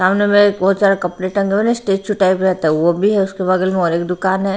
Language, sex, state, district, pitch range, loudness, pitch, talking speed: Hindi, female, Haryana, Rohtak, 185-200 Hz, -15 LUFS, 190 Hz, 290 wpm